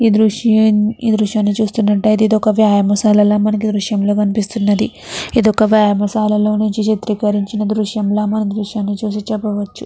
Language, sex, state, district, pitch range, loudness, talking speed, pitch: Telugu, female, Andhra Pradesh, Chittoor, 210-215 Hz, -15 LUFS, 130 wpm, 210 Hz